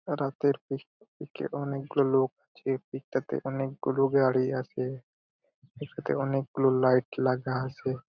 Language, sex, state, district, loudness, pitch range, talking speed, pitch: Bengali, male, West Bengal, Purulia, -29 LUFS, 130-140 Hz, 150 wpm, 135 Hz